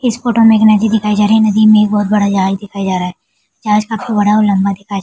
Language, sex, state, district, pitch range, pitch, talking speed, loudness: Hindi, female, Bihar, Kishanganj, 200-220 Hz, 210 Hz, 310 wpm, -12 LUFS